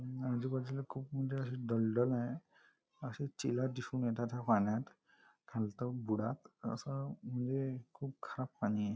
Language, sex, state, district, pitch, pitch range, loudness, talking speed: Marathi, male, Maharashtra, Nagpur, 125 Hz, 120-135 Hz, -39 LUFS, 140 wpm